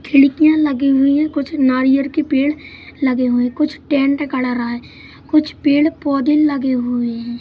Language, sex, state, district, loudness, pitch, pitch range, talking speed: Hindi, male, Madhya Pradesh, Katni, -16 LUFS, 275 Hz, 255-300 Hz, 180 wpm